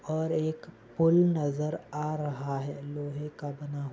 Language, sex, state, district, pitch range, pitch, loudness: Hindi, male, Goa, North and South Goa, 145-155 Hz, 150 Hz, -30 LUFS